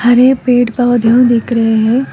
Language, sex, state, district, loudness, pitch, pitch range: Hindi, female, Telangana, Hyderabad, -11 LUFS, 245 Hz, 230-250 Hz